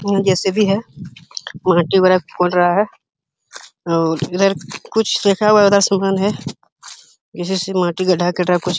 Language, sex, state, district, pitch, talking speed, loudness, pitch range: Hindi, male, Uttar Pradesh, Hamirpur, 190 Hz, 135 wpm, -16 LUFS, 180-200 Hz